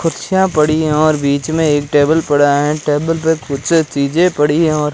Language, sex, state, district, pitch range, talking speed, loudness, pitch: Hindi, male, Rajasthan, Jaisalmer, 145-160 Hz, 220 wpm, -14 LUFS, 155 Hz